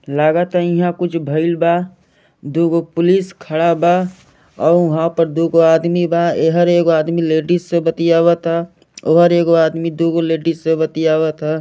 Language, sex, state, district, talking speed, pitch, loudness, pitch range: Bhojpuri, male, Jharkhand, Sahebganj, 170 wpm, 165 Hz, -15 LUFS, 160-170 Hz